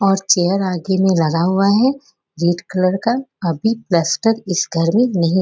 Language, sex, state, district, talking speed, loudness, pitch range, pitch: Hindi, female, Bihar, Bhagalpur, 190 wpm, -17 LUFS, 175-220 Hz, 190 Hz